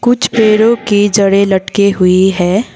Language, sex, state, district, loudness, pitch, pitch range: Hindi, female, Sikkim, Gangtok, -10 LUFS, 200 Hz, 190-220 Hz